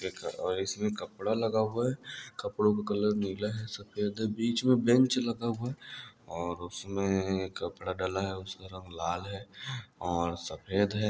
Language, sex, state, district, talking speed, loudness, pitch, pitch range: Hindi, male, Andhra Pradesh, Anantapur, 180 wpm, -32 LUFS, 105 Hz, 95-110 Hz